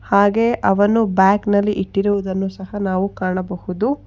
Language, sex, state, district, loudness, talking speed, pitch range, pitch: Kannada, female, Karnataka, Bangalore, -18 LUFS, 105 wpm, 190-205 Hz, 200 Hz